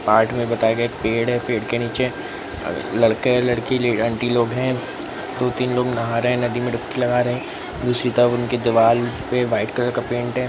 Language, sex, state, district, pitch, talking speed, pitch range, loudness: Hindi, male, Bihar, Araria, 120 Hz, 210 wpm, 115-125 Hz, -20 LUFS